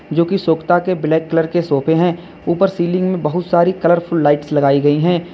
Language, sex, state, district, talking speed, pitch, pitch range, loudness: Hindi, male, Uttar Pradesh, Lalitpur, 215 wpm, 170 Hz, 155-175 Hz, -16 LUFS